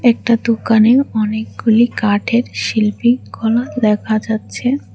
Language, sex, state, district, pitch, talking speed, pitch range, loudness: Bengali, female, Tripura, West Tripura, 225 Hz, 95 wpm, 215-240 Hz, -15 LUFS